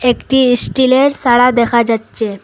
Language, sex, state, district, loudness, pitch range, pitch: Bengali, female, Assam, Hailakandi, -12 LUFS, 235-260 Hz, 245 Hz